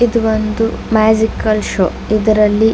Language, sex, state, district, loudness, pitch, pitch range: Kannada, female, Karnataka, Dakshina Kannada, -14 LUFS, 220 Hz, 215-220 Hz